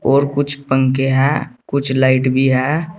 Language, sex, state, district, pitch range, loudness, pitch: Hindi, male, Uttar Pradesh, Saharanpur, 130-140 Hz, -15 LUFS, 135 Hz